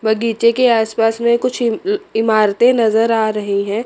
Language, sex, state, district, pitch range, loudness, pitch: Hindi, female, Chandigarh, Chandigarh, 220-235 Hz, -15 LUFS, 225 Hz